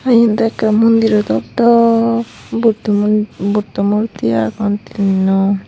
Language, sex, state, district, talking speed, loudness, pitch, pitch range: Chakma, female, Tripura, Unakoti, 135 wpm, -14 LUFS, 215 Hz, 200-230 Hz